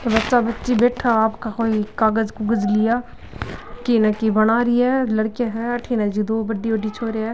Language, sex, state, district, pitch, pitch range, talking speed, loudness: Marwari, female, Rajasthan, Nagaur, 225 Hz, 220-240 Hz, 180 wpm, -20 LUFS